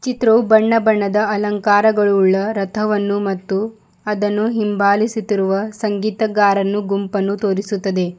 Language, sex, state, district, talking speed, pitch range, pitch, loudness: Kannada, female, Karnataka, Bidar, 80 wpm, 200-215 Hz, 205 Hz, -17 LUFS